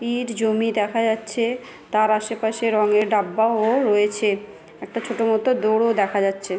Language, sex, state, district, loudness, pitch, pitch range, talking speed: Bengali, female, West Bengal, Malda, -21 LUFS, 220 Hz, 210-230 Hz, 175 wpm